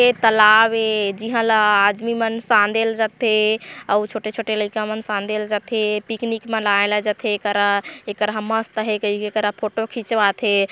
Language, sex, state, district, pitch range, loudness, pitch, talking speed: Chhattisgarhi, female, Chhattisgarh, Korba, 210-225 Hz, -19 LUFS, 215 Hz, 135 wpm